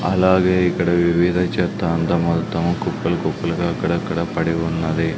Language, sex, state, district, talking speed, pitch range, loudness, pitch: Telugu, male, Andhra Pradesh, Sri Satya Sai, 125 wpm, 85-90 Hz, -19 LUFS, 85 Hz